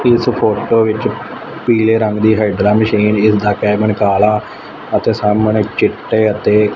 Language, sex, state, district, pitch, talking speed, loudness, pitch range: Punjabi, male, Punjab, Fazilka, 105 Hz, 135 wpm, -13 LUFS, 105-110 Hz